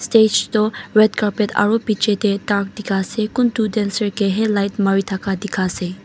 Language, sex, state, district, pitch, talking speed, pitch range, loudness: Nagamese, female, Mizoram, Aizawl, 210 Hz, 210 wpm, 195-215 Hz, -18 LUFS